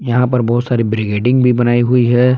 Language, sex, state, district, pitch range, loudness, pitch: Hindi, male, Jharkhand, Palamu, 120-125 Hz, -14 LUFS, 120 Hz